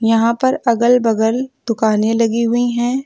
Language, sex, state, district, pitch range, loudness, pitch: Hindi, female, Uttar Pradesh, Lucknow, 225-245 Hz, -16 LUFS, 235 Hz